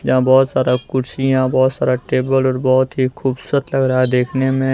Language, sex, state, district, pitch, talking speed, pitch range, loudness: Hindi, male, Jharkhand, Deoghar, 130 Hz, 200 wpm, 130-135 Hz, -16 LUFS